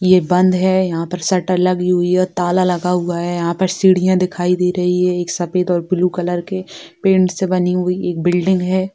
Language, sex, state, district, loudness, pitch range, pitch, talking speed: Hindi, female, Bihar, Sitamarhi, -16 LUFS, 175-185 Hz, 180 Hz, 230 wpm